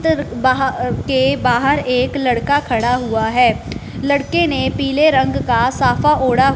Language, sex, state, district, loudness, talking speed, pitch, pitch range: Hindi, female, Punjab, Fazilka, -16 LUFS, 130 wpm, 265 Hz, 250-285 Hz